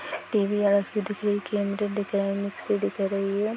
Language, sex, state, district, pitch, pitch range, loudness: Hindi, female, Jharkhand, Sahebganj, 205 Hz, 200-205 Hz, -26 LUFS